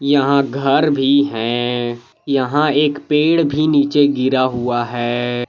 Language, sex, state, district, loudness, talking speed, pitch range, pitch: Hindi, male, Jharkhand, Palamu, -16 LUFS, 130 wpm, 120-145 Hz, 140 Hz